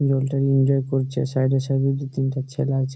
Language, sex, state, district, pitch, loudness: Bengali, male, West Bengal, Malda, 135 Hz, -22 LUFS